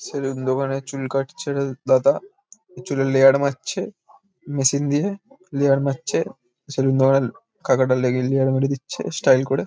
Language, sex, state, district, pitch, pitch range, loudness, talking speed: Bengali, male, West Bengal, Kolkata, 135 Hz, 135-150 Hz, -21 LUFS, 135 wpm